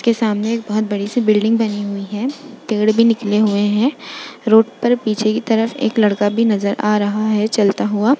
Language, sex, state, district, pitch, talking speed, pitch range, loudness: Hindi, female, Uttar Pradesh, Jalaun, 215 Hz, 205 wpm, 210-230 Hz, -17 LUFS